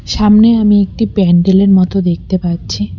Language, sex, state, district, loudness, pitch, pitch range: Bengali, female, West Bengal, Cooch Behar, -11 LUFS, 190 Hz, 175-210 Hz